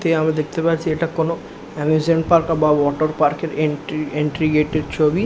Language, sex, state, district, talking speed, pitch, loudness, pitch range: Bengali, male, West Bengal, Kolkata, 195 wpm, 155 Hz, -19 LUFS, 150-165 Hz